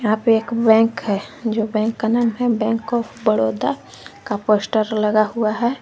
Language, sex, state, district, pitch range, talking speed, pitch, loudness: Hindi, female, Jharkhand, Garhwa, 215-230 Hz, 185 wpm, 220 Hz, -19 LUFS